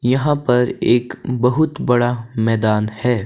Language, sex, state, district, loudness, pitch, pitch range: Hindi, male, Himachal Pradesh, Shimla, -17 LUFS, 125 Hz, 115-125 Hz